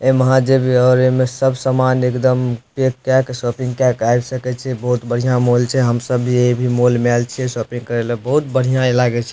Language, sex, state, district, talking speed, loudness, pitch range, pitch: Maithili, male, Bihar, Supaul, 230 wpm, -16 LUFS, 120-130 Hz, 125 Hz